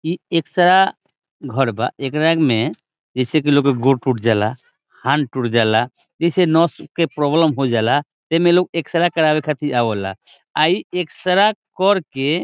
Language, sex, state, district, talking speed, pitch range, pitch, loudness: Bhojpuri, male, Bihar, Saran, 160 wpm, 130-170 Hz, 150 Hz, -18 LUFS